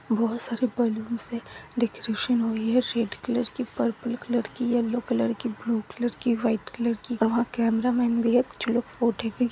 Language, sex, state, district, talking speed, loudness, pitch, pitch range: Hindi, female, Chhattisgarh, Raigarh, 200 wpm, -26 LUFS, 235 Hz, 230-240 Hz